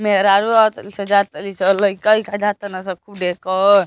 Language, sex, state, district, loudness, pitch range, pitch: Bhojpuri, male, Uttar Pradesh, Deoria, -17 LUFS, 190-205 Hz, 200 Hz